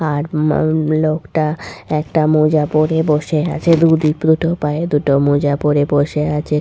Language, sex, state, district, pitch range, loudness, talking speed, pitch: Bengali, female, West Bengal, Purulia, 150-160 Hz, -15 LUFS, 145 wpm, 155 Hz